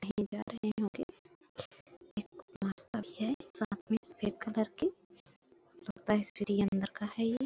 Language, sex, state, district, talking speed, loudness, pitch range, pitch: Hindi, female, Chhattisgarh, Bilaspur, 120 wpm, -37 LUFS, 205-255 Hz, 215 Hz